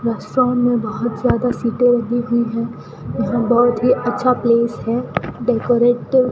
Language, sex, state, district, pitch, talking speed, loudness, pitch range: Hindi, female, Rajasthan, Bikaner, 240 Hz, 160 wpm, -17 LUFS, 235-245 Hz